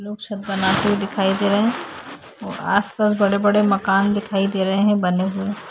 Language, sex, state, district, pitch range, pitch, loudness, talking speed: Hindi, female, Uttar Pradesh, Jyotiba Phule Nagar, 195-205 Hz, 200 Hz, -19 LUFS, 190 wpm